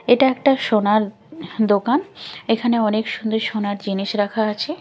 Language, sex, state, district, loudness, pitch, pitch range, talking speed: Bengali, female, Chhattisgarh, Raipur, -19 LUFS, 220 Hz, 205-245 Hz, 135 wpm